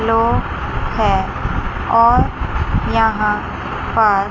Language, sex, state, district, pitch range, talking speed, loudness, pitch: Hindi, female, Chandigarh, Chandigarh, 210-230 Hz, 70 wpm, -17 LUFS, 225 Hz